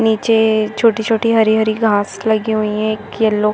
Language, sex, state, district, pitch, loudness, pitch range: Hindi, female, Chhattisgarh, Bastar, 220 Hz, -15 LUFS, 215-225 Hz